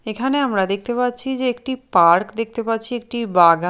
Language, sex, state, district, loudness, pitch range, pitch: Bengali, female, Chhattisgarh, Raipur, -19 LUFS, 195-250 Hz, 230 Hz